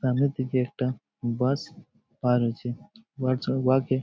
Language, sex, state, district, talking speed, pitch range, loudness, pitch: Bengali, male, West Bengal, Jhargram, 150 wpm, 125-130 Hz, -27 LUFS, 130 Hz